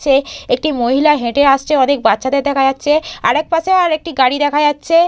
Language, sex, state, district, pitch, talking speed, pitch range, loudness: Bengali, female, West Bengal, Purulia, 290 Hz, 175 wpm, 270-310 Hz, -14 LUFS